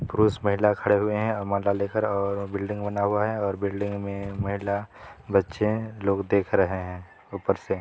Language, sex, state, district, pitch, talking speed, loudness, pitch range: Hindi, male, Chhattisgarh, Balrampur, 100 Hz, 170 wpm, -26 LUFS, 100-105 Hz